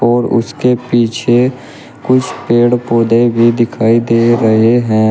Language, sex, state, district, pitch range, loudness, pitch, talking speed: Hindi, male, Uttar Pradesh, Shamli, 115-125 Hz, -12 LUFS, 120 Hz, 130 wpm